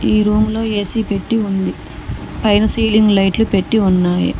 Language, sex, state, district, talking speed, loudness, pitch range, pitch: Telugu, female, Telangana, Mahabubabad, 150 wpm, -15 LUFS, 195-220 Hz, 210 Hz